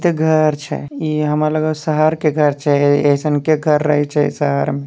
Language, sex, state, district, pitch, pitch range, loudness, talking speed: Hindi, male, Bihar, Begusarai, 150 Hz, 145-155 Hz, -16 LUFS, 195 wpm